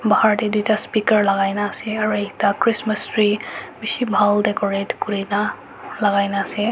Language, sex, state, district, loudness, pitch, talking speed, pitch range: Nagamese, male, Nagaland, Dimapur, -20 LUFS, 210 Hz, 160 wpm, 200-215 Hz